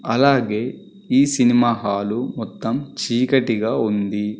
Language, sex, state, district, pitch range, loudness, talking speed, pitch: Telugu, male, Telangana, Karimnagar, 105-135 Hz, -19 LUFS, 95 wpm, 120 Hz